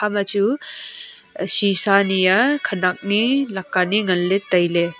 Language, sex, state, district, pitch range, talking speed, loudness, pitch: Wancho, female, Arunachal Pradesh, Longding, 185-210 Hz, 120 wpm, -18 LUFS, 195 Hz